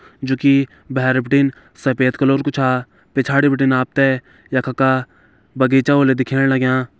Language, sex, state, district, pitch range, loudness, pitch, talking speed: Garhwali, male, Uttarakhand, Tehri Garhwal, 130-135 Hz, -17 LUFS, 130 Hz, 155 wpm